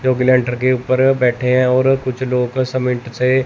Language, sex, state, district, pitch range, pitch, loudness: Hindi, male, Chandigarh, Chandigarh, 125-130 Hz, 130 Hz, -16 LUFS